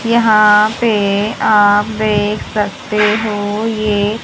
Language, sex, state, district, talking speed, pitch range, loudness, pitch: Hindi, female, Haryana, Charkhi Dadri, 100 wpm, 205-215 Hz, -13 LUFS, 210 Hz